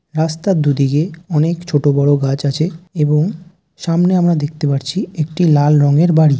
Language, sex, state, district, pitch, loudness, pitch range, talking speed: Bengali, male, West Bengal, Jalpaiguri, 160 Hz, -15 LUFS, 145-175 Hz, 150 wpm